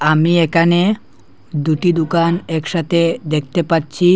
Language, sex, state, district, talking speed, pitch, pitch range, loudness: Bengali, male, Assam, Hailakandi, 100 wpm, 165 Hz, 155-170 Hz, -16 LUFS